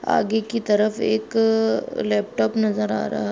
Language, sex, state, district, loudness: Hindi, female, Bihar, Bhagalpur, -21 LUFS